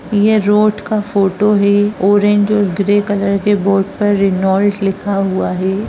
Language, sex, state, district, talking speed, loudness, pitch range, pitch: Hindi, female, Bihar, Darbhanga, 165 wpm, -14 LUFS, 195-205 Hz, 205 Hz